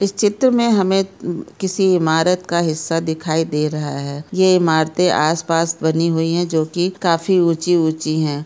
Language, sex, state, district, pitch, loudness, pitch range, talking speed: Hindi, female, Bihar, Araria, 165 Hz, -17 LUFS, 160-185 Hz, 165 wpm